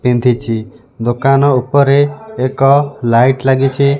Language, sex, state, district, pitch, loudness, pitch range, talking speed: Odia, male, Odisha, Malkangiri, 135 Hz, -13 LUFS, 120-140 Hz, 90 wpm